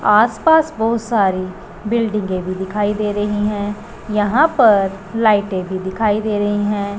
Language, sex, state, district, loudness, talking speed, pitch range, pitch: Hindi, female, Punjab, Pathankot, -17 LUFS, 155 wpm, 200-220 Hz, 210 Hz